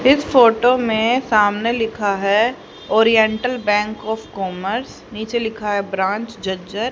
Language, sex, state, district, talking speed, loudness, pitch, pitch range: Hindi, female, Haryana, Jhajjar, 145 wpm, -18 LUFS, 220 Hz, 205-235 Hz